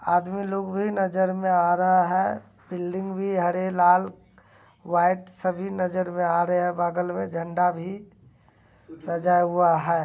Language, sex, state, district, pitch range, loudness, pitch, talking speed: Angika, male, Bihar, Begusarai, 170-185 Hz, -24 LUFS, 180 Hz, 155 wpm